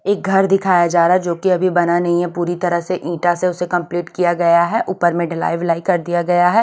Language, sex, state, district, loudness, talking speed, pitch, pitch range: Hindi, female, Maharashtra, Gondia, -16 LUFS, 255 wpm, 175 Hz, 175-185 Hz